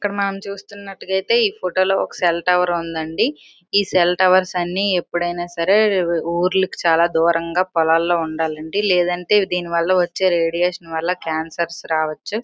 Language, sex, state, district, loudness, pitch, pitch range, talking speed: Telugu, female, Andhra Pradesh, Srikakulam, -19 LUFS, 175 Hz, 170-190 Hz, 140 wpm